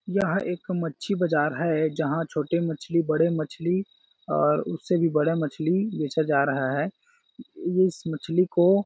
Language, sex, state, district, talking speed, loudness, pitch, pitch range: Hindi, male, Chhattisgarh, Balrampur, 155 wpm, -25 LUFS, 165 Hz, 155-185 Hz